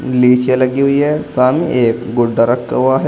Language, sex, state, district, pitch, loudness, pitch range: Hindi, male, Uttar Pradesh, Saharanpur, 125 Hz, -13 LUFS, 120-135 Hz